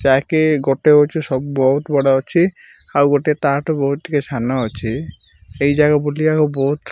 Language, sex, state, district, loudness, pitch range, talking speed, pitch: Odia, male, Odisha, Malkangiri, -17 LUFS, 135-150 Hz, 175 wpm, 140 Hz